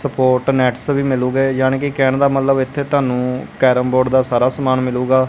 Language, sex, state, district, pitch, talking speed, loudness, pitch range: Punjabi, male, Punjab, Kapurthala, 130 Hz, 195 wpm, -16 LUFS, 125-135 Hz